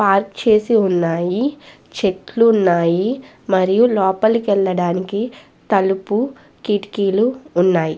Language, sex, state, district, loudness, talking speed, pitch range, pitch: Telugu, female, Andhra Pradesh, Guntur, -17 LUFS, 85 wpm, 185-230 Hz, 200 Hz